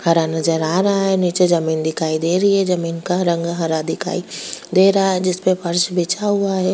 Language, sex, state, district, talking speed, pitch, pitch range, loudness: Hindi, female, Bihar, Kishanganj, 220 wpm, 180 Hz, 165-190 Hz, -18 LUFS